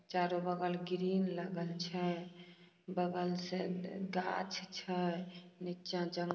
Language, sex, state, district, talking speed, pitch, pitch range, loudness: Hindi, female, Bihar, Samastipur, 105 wpm, 180 Hz, 175-180 Hz, -39 LUFS